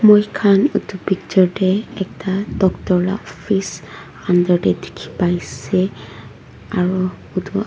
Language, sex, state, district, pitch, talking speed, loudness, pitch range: Nagamese, female, Nagaland, Dimapur, 185 Hz, 100 wpm, -18 LUFS, 170-195 Hz